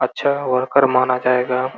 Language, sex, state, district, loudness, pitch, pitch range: Hindi, male, Uttar Pradesh, Gorakhpur, -17 LUFS, 130 Hz, 125-130 Hz